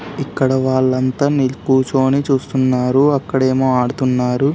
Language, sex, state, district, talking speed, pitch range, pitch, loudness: Telugu, male, Telangana, Karimnagar, 80 wpm, 130-135 Hz, 130 Hz, -16 LUFS